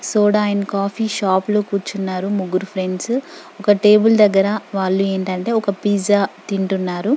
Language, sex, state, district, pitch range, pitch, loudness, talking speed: Telugu, female, Telangana, Karimnagar, 190-210 Hz, 200 Hz, -18 LUFS, 135 wpm